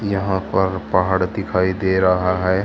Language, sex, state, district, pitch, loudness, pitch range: Hindi, female, Haryana, Charkhi Dadri, 95 Hz, -19 LUFS, 90-95 Hz